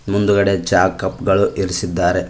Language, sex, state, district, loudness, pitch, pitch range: Kannada, male, Karnataka, Koppal, -17 LUFS, 95 Hz, 90-100 Hz